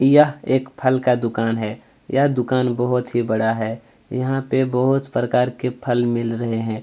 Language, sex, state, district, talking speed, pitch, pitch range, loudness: Hindi, male, Chhattisgarh, Kabirdham, 195 wpm, 125 Hz, 115-130 Hz, -20 LUFS